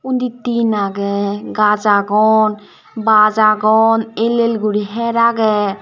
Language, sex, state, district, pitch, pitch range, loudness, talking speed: Chakma, female, Tripura, Dhalai, 215 Hz, 210-230 Hz, -14 LUFS, 125 wpm